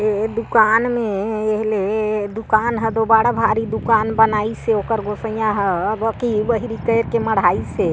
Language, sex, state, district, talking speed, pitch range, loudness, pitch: Chhattisgarhi, female, Chhattisgarh, Sarguja, 135 wpm, 215-225 Hz, -18 LUFS, 220 Hz